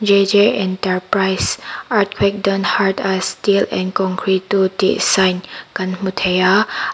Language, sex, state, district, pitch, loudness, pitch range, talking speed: Mizo, female, Mizoram, Aizawl, 195 Hz, -16 LUFS, 185-200 Hz, 130 wpm